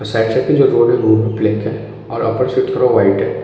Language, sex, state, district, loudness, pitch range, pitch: Hindi, male, Uttar Pradesh, Ghazipur, -14 LUFS, 110-120 Hz, 115 Hz